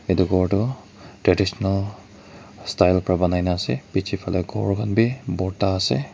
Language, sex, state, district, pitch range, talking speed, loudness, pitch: Nagamese, male, Nagaland, Kohima, 90-100 Hz, 145 wpm, -22 LUFS, 95 Hz